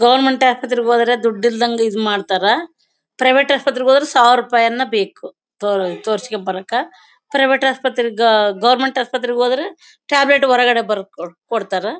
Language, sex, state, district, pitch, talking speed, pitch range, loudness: Kannada, female, Karnataka, Bellary, 245 Hz, 130 wpm, 215-265 Hz, -16 LUFS